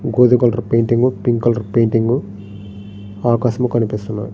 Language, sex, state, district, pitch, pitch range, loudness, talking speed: Telugu, male, Andhra Pradesh, Srikakulam, 115 Hz, 100-120 Hz, -16 LUFS, 110 wpm